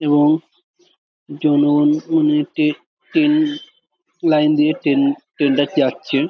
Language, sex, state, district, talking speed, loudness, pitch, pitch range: Bengali, male, West Bengal, Kolkata, 105 wpm, -17 LUFS, 150 Hz, 145-175 Hz